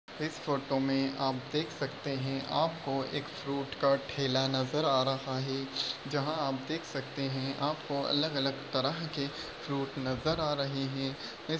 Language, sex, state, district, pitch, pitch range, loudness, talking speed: Hindi, male, Maharashtra, Solapur, 140 Hz, 135-150 Hz, -33 LUFS, 160 wpm